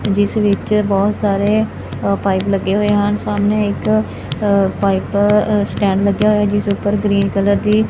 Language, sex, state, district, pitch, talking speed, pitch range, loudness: Punjabi, male, Punjab, Fazilka, 205 Hz, 165 wpm, 200-210 Hz, -16 LUFS